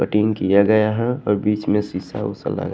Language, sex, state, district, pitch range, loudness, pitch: Hindi, male, Haryana, Jhajjar, 100-110 Hz, -19 LUFS, 105 Hz